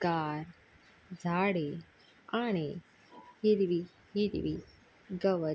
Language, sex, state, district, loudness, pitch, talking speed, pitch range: Marathi, female, Maharashtra, Sindhudurg, -33 LUFS, 180 Hz, 75 wpm, 165-200 Hz